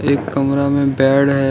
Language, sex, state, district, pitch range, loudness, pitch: Hindi, male, Jharkhand, Ranchi, 135-140 Hz, -15 LUFS, 140 Hz